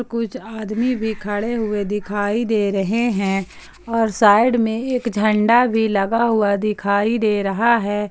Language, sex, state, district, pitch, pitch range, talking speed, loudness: Hindi, female, Jharkhand, Palamu, 220 Hz, 205-235 Hz, 165 wpm, -19 LUFS